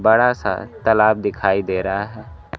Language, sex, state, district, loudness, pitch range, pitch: Hindi, male, Bihar, Kaimur, -18 LUFS, 95-110 Hz, 105 Hz